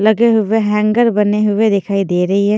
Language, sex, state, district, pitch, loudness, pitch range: Hindi, female, Himachal Pradesh, Shimla, 210 Hz, -14 LUFS, 200-220 Hz